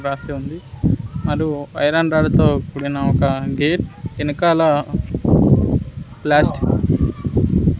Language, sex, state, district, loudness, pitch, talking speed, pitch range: Telugu, male, Andhra Pradesh, Sri Satya Sai, -18 LUFS, 145 Hz, 75 wpm, 135-155 Hz